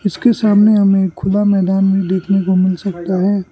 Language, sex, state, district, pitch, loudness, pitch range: Hindi, male, Arunachal Pradesh, Lower Dibang Valley, 195 Hz, -14 LUFS, 185-200 Hz